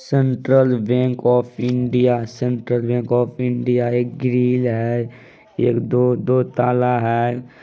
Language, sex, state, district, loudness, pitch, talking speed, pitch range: Maithili, male, Bihar, Madhepura, -19 LUFS, 125 Hz, 125 wpm, 120-125 Hz